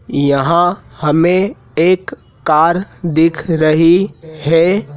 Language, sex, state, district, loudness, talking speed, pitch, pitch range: Hindi, male, Madhya Pradesh, Dhar, -13 LUFS, 85 wpm, 165 Hz, 150-175 Hz